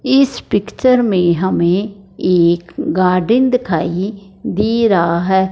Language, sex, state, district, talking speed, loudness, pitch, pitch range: Hindi, female, Punjab, Fazilka, 110 wpm, -15 LUFS, 190 Hz, 180-225 Hz